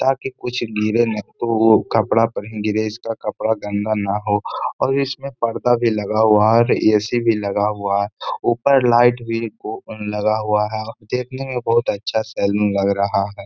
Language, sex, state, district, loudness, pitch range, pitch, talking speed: Hindi, male, Bihar, Gaya, -19 LUFS, 105-120 Hz, 110 Hz, 185 wpm